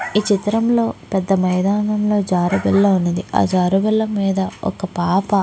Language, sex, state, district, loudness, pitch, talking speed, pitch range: Telugu, female, Andhra Pradesh, Krishna, -18 LUFS, 195 Hz, 130 wpm, 185-210 Hz